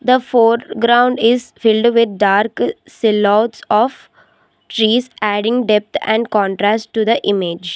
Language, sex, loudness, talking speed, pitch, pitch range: English, female, -15 LUFS, 140 wpm, 225 Hz, 210-235 Hz